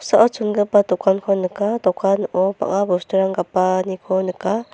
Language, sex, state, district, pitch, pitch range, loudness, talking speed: Garo, female, Meghalaya, North Garo Hills, 195 Hz, 185-205 Hz, -19 LUFS, 115 wpm